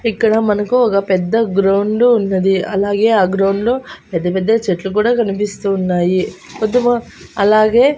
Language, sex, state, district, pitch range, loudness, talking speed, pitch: Telugu, female, Andhra Pradesh, Annamaya, 195-230 Hz, -15 LUFS, 115 wpm, 210 Hz